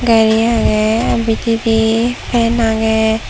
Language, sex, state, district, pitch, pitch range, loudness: Chakma, female, Tripura, Dhalai, 225 Hz, 220-230 Hz, -14 LUFS